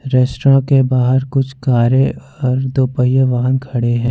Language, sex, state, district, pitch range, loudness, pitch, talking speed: Hindi, male, Jharkhand, Ranchi, 125-135 Hz, -15 LUFS, 130 Hz, 160 wpm